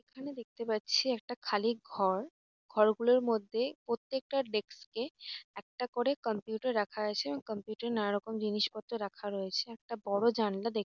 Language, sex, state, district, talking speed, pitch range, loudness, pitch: Bengali, female, West Bengal, North 24 Parganas, 150 wpm, 210-245 Hz, -34 LUFS, 225 Hz